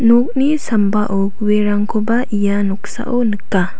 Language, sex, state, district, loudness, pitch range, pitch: Garo, female, Meghalaya, South Garo Hills, -16 LUFS, 205-240 Hz, 210 Hz